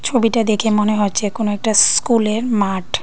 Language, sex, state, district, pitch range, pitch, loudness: Bengali, female, Tripura, Dhalai, 205-225 Hz, 215 Hz, -16 LUFS